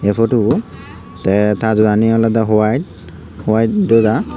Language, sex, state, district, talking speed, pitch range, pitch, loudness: Chakma, male, Tripura, Unakoti, 135 wpm, 105-115 Hz, 110 Hz, -14 LUFS